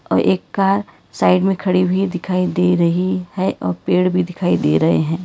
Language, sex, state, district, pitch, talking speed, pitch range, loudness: Hindi, female, Karnataka, Bangalore, 180 Hz, 195 wpm, 165-185 Hz, -17 LUFS